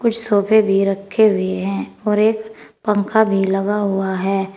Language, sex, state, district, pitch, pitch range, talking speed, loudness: Hindi, female, Uttar Pradesh, Saharanpur, 200 Hz, 195-220 Hz, 170 wpm, -17 LUFS